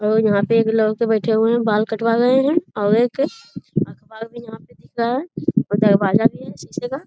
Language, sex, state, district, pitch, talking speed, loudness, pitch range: Hindi, female, Bihar, Jamui, 225 Hz, 230 wpm, -18 LUFS, 210-235 Hz